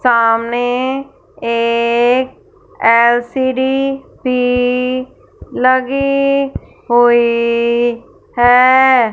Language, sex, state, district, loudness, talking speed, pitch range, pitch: Hindi, female, Punjab, Fazilka, -13 LUFS, 45 wpm, 235-260 Hz, 250 Hz